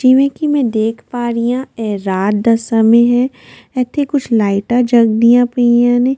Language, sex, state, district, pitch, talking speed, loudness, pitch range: Punjabi, female, Delhi, New Delhi, 240 Hz, 175 wpm, -13 LUFS, 225-255 Hz